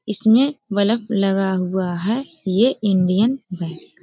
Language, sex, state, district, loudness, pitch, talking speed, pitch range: Hindi, female, Uttar Pradesh, Budaun, -19 LUFS, 200 Hz, 135 wpm, 185-230 Hz